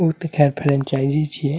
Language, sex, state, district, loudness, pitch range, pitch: Maithili, male, Bihar, Saharsa, -19 LUFS, 140-155 Hz, 145 Hz